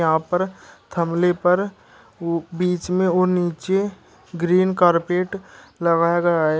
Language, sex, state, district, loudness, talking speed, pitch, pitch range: Hindi, male, Uttar Pradesh, Shamli, -20 LUFS, 120 wpm, 180 Hz, 170-185 Hz